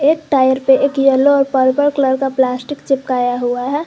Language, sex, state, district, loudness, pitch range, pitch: Hindi, female, Jharkhand, Garhwa, -14 LUFS, 260-280 Hz, 270 Hz